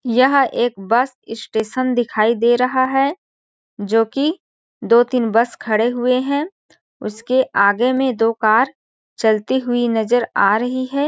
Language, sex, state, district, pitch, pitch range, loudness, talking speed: Hindi, female, Chhattisgarh, Balrampur, 240 Hz, 225-260 Hz, -17 LUFS, 145 wpm